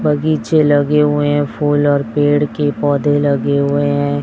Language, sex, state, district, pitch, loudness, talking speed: Hindi, male, Chhattisgarh, Raipur, 145 Hz, -14 LUFS, 170 wpm